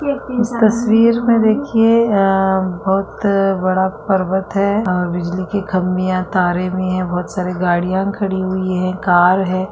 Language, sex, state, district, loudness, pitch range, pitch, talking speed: Hindi, female, Uttarakhand, Tehri Garhwal, -16 LUFS, 185-205 Hz, 190 Hz, 155 wpm